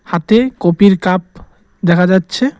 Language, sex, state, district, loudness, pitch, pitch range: Bengali, male, West Bengal, Cooch Behar, -13 LUFS, 185 Hz, 175-215 Hz